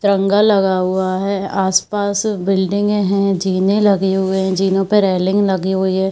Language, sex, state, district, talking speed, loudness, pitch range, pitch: Hindi, female, Chhattisgarh, Bilaspur, 165 wpm, -16 LUFS, 190-200 Hz, 195 Hz